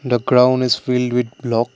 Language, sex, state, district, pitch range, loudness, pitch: English, male, Assam, Kamrup Metropolitan, 120-125 Hz, -17 LUFS, 125 Hz